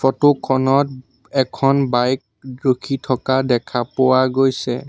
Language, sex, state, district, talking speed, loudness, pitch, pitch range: Assamese, male, Assam, Sonitpur, 110 wpm, -18 LUFS, 130 Hz, 125-135 Hz